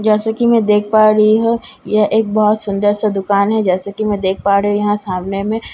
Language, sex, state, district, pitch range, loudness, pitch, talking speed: Hindi, female, Bihar, Katihar, 200-215 Hz, -14 LUFS, 210 Hz, 250 wpm